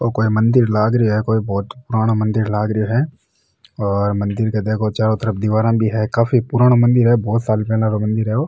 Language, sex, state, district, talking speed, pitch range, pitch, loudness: Marwari, male, Rajasthan, Nagaur, 235 wpm, 105-115 Hz, 110 Hz, -17 LUFS